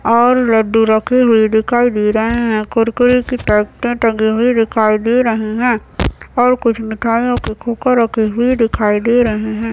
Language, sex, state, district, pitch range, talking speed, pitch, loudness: Hindi, female, Bihar, Madhepura, 220-245 Hz, 180 wpm, 230 Hz, -14 LUFS